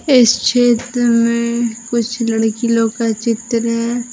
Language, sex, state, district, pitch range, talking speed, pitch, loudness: Hindi, female, Jharkhand, Deoghar, 230-240 Hz, 130 wpm, 235 Hz, -15 LUFS